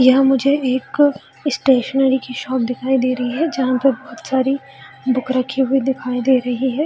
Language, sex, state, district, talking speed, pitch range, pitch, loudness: Hindi, female, Bihar, Jamui, 185 wpm, 255-270 Hz, 260 Hz, -18 LUFS